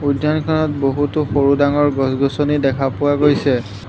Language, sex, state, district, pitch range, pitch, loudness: Assamese, male, Assam, Hailakandi, 135-145 Hz, 145 Hz, -17 LUFS